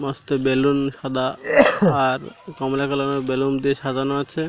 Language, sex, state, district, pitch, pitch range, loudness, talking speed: Bengali, male, Odisha, Malkangiri, 135 Hz, 135-140 Hz, -21 LUFS, 145 wpm